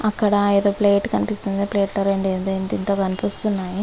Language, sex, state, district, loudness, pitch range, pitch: Telugu, female, Andhra Pradesh, Visakhapatnam, -18 LUFS, 195-205 Hz, 200 Hz